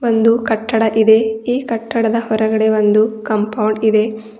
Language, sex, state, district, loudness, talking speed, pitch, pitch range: Kannada, female, Karnataka, Bidar, -15 LUFS, 95 wpm, 220 Hz, 220-225 Hz